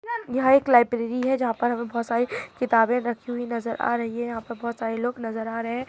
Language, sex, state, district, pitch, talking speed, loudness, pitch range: Chhattisgarhi, female, Chhattisgarh, Bilaspur, 240 Hz, 255 wpm, -24 LUFS, 230-245 Hz